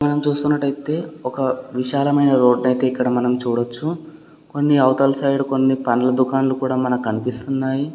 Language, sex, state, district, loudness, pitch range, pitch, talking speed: Telugu, male, Karnataka, Gulbarga, -19 LUFS, 125-145 Hz, 135 Hz, 130 wpm